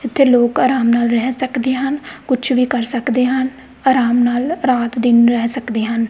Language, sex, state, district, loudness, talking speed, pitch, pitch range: Punjabi, female, Punjab, Kapurthala, -16 LUFS, 185 wpm, 250 Hz, 240-260 Hz